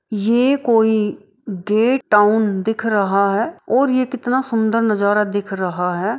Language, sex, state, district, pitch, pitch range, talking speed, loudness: Maithili, female, Bihar, Araria, 215 Hz, 205-235 Hz, 145 wpm, -17 LUFS